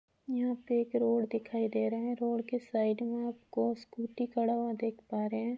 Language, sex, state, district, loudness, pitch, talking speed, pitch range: Hindi, female, Rajasthan, Churu, -34 LUFS, 230 Hz, 215 wpm, 225-240 Hz